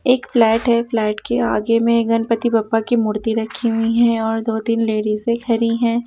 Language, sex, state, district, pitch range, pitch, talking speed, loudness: Hindi, female, Haryana, Jhajjar, 225-235 Hz, 230 Hz, 195 wpm, -18 LUFS